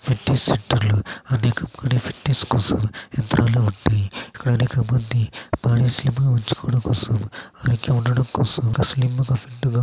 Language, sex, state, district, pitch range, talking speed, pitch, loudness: Telugu, male, Andhra Pradesh, Chittoor, 115-130 Hz, 130 wpm, 120 Hz, -20 LUFS